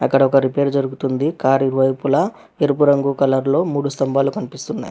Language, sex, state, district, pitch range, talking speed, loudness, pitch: Telugu, male, Telangana, Hyderabad, 135-140 Hz, 160 wpm, -18 LUFS, 135 Hz